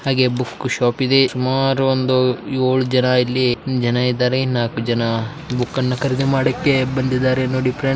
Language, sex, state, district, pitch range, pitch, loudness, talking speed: Kannada, male, Karnataka, Bijapur, 125-130 Hz, 130 Hz, -18 LUFS, 135 wpm